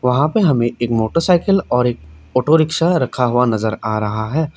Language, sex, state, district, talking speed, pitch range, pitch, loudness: Hindi, male, Assam, Kamrup Metropolitan, 195 wpm, 110-160 Hz, 125 Hz, -16 LUFS